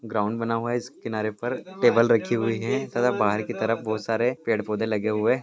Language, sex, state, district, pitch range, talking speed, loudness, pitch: Hindi, male, Chhattisgarh, Bilaspur, 110-120 Hz, 220 wpm, -25 LUFS, 115 Hz